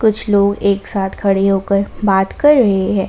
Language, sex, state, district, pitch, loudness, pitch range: Hindi, female, Jharkhand, Garhwa, 200 Hz, -14 LUFS, 195-205 Hz